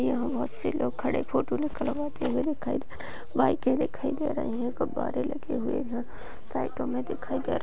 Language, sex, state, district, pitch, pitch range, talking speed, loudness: Hindi, female, Uttar Pradesh, Jyotiba Phule Nagar, 290 Hz, 245-300 Hz, 210 wpm, -30 LUFS